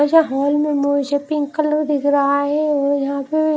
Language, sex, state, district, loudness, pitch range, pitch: Hindi, female, Haryana, Rohtak, -18 LUFS, 285-305 Hz, 285 Hz